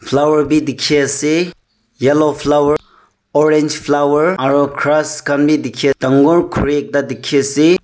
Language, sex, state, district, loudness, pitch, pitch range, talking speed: Nagamese, male, Nagaland, Dimapur, -14 LUFS, 145 Hz, 140-150 Hz, 145 wpm